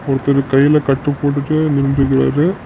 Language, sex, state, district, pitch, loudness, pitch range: Tamil, male, Tamil Nadu, Namakkal, 140 Hz, -15 LUFS, 135-145 Hz